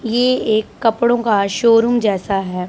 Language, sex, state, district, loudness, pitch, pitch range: Hindi, female, Punjab, Pathankot, -16 LUFS, 225 Hz, 200-235 Hz